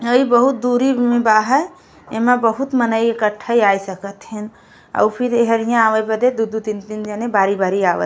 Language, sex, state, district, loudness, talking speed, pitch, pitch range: Bhojpuri, female, Uttar Pradesh, Gorakhpur, -16 LUFS, 200 wpm, 225 Hz, 210-245 Hz